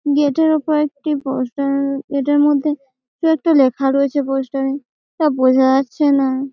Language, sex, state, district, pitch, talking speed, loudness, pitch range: Bengali, female, West Bengal, Malda, 280 Hz, 145 wpm, -17 LUFS, 270-295 Hz